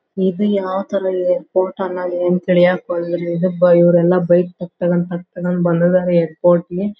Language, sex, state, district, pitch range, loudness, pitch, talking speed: Kannada, female, Karnataka, Belgaum, 175-185 Hz, -16 LUFS, 180 Hz, 75 wpm